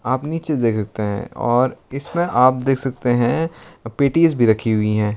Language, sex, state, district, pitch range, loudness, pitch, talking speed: Hindi, male, Uttar Pradesh, Lucknow, 115-140 Hz, -19 LUFS, 125 Hz, 185 wpm